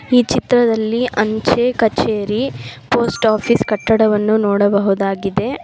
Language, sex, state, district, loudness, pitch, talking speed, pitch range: Kannada, female, Karnataka, Bangalore, -16 LUFS, 215 Hz, 85 wpm, 205-235 Hz